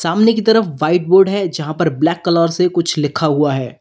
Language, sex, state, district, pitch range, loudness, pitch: Hindi, male, Uttar Pradesh, Lalitpur, 155-190 Hz, -15 LUFS, 170 Hz